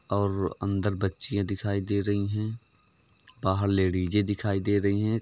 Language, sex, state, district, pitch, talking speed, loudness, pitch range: Hindi, male, Uttar Pradesh, Varanasi, 100 Hz, 150 wpm, -28 LUFS, 95-105 Hz